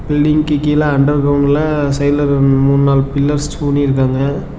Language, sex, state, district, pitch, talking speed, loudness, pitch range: Tamil, male, Tamil Nadu, Namakkal, 145 Hz, 130 wpm, -13 LUFS, 140-145 Hz